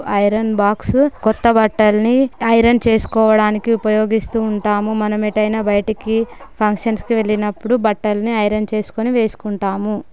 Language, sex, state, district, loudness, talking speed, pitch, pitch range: Telugu, female, Telangana, Karimnagar, -16 LUFS, 105 wpm, 215 Hz, 210-225 Hz